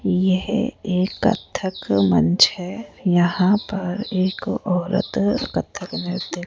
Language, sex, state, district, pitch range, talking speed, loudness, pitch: Hindi, female, Rajasthan, Jaipur, 180-200 Hz, 110 wpm, -21 LUFS, 185 Hz